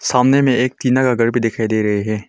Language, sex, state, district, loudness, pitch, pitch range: Hindi, male, Arunachal Pradesh, Longding, -16 LUFS, 120 Hz, 110-125 Hz